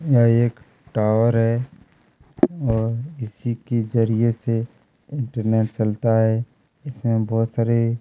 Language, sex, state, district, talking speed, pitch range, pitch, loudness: Hindi, male, Chhattisgarh, Kabirdham, 120 wpm, 115-120 Hz, 115 Hz, -21 LUFS